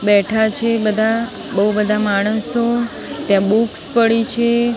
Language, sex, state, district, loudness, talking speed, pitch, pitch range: Gujarati, female, Gujarat, Gandhinagar, -16 LUFS, 125 wpm, 220 Hz, 210-235 Hz